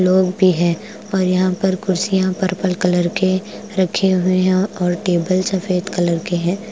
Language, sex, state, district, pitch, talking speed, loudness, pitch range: Hindi, female, Punjab, Kapurthala, 185 Hz, 170 wpm, -18 LUFS, 180-190 Hz